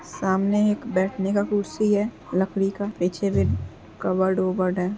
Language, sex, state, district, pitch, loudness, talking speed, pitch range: Hindi, female, Uttar Pradesh, Jyotiba Phule Nagar, 190 Hz, -24 LUFS, 155 wpm, 185-205 Hz